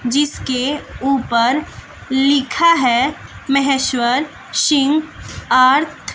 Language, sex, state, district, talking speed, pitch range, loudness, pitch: Hindi, female, Bihar, West Champaran, 80 wpm, 255-290 Hz, -16 LUFS, 275 Hz